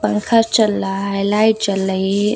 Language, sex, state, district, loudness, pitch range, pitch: Hindi, female, Uttar Pradesh, Lucknow, -16 LUFS, 195-215 Hz, 205 Hz